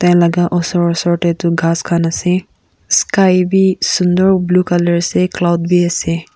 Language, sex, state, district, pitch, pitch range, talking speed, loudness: Nagamese, female, Nagaland, Kohima, 175 Hz, 170-180 Hz, 170 wpm, -14 LUFS